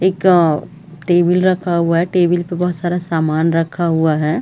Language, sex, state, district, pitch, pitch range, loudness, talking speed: Hindi, female, Chhattisgarh, Raigarh, 175 Hz, 165-180 Hz, -16 LUFS, 190 wpm